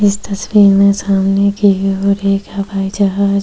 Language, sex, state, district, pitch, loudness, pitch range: Hindi, female, Uttar Pradesh, Jyotiba Phule Nagar, 200 Hz, -13 LUFS, 195-200 Hz